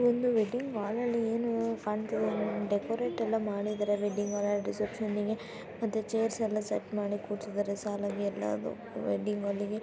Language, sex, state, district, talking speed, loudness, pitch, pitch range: Kannada, female, Karnataka, Bellary, 150 wpm, -33 LUFS, 210 Hz, 205-225 Hz